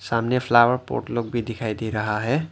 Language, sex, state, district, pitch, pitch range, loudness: Hindi, male, Arunachal Pradesh, Lower Dibang Valley, 120 Hz, 110-120 Hz, -22 LUFS